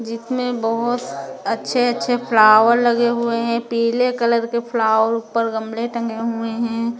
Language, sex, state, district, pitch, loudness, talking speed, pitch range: Hindi, female, Maharashtra, Mumbai Suburban, 235 Hz, -18 LUFS, 155 wpm, 230-240 Hz